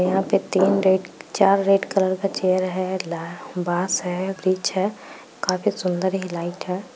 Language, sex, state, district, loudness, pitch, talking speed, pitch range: Hindi, female, Bihar, Bhagalpur, -22 LUFS, 185 Hz, 165 wpm, 180-195 Hz